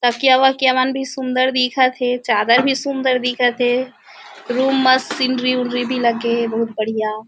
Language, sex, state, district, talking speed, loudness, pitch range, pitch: Chhattisgarhi, female, Chhattisgarh, Kabirdham, 150 wpm, -17 LUFS, 240-260 Hz, 255 Hz